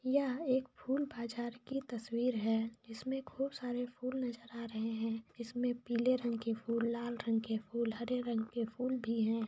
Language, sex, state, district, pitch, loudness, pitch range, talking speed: Hindi, female, Jharkhand, Sahebganj, 235 Hz, -38 LUFS, 230-250 Hz, 190 wpm